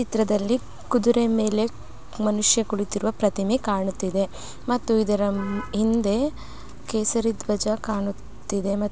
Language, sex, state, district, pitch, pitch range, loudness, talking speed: Kannada, female, Karnataka, Belgaum, 215 Hz, 205-230 Hz, -24 LUFS, 75 wpm